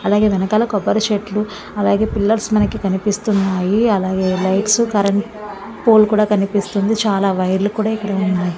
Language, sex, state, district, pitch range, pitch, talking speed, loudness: Telugu, female, Andhra Pradesh, Visakhapatnam, 195-215 Hz, 205 Hz, 135 wpm, -16 LUFS